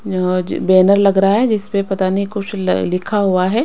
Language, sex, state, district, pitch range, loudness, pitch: Hindi, female, Maharashtra, Mumbai Suburban, 185-205 Hz, -15 LUFS, 195 Hz